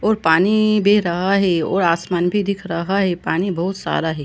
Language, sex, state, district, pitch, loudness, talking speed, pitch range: Hindi, female, Bihar, Lakhisarai, 185 Hz, -18 LUFS, 210 wpm, 170-200 Hz